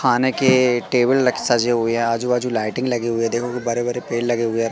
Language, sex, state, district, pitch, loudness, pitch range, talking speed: Hindi, male, Madhya Pradesh, Katni, 120 Hz, -19 LUFS, 115-125 Hz, 255 wpm